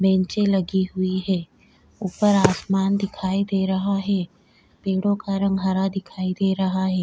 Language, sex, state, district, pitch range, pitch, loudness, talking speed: Hindi, female, Goa, North and South Goa, 190-195 Hz, 190 Hz, -22 LUFS, 155 wpm